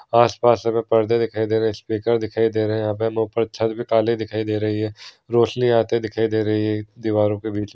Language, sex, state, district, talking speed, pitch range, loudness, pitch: Hindi, male, Bihar, Saharsa, 240 wpm, 110-115 Hz, -21 LUFS, 110 Hz